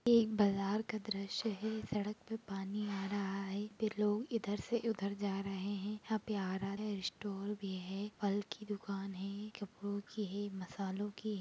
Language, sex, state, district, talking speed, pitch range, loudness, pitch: Hindi, female, Bihar, Begusarai, 185 wpm, 195-215 Hz, -39 LUFS, 205 Hz